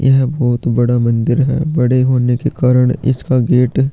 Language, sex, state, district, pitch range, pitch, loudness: Hindi, male, Chhattisgarh, Sukma, 125-135 Hz, 125 Hz, -14 LUFS